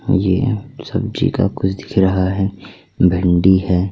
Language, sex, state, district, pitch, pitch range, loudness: Hindi, male, Bihar, Gopalganj, 95 Hz, 90-95 Hz, -17 LUFS